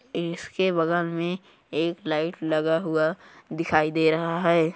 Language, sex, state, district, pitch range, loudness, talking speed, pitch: Hindi, male, Chhattisgarh, Kabirdham, 160-170 Hz, -25 LUFS, 150 wpm, 165 Hz